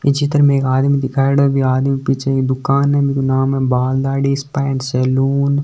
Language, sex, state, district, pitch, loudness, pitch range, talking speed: Marwari, male, Rajasthan, Nagaur, 135 Hz, -16 LUFS, 130-140 Hz, 235 wpm